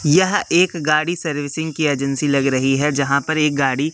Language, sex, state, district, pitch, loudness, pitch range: Hindi, male, Madhya Pradesh, Katni, 150 Hz, -18 LUFS, 140-160 Hz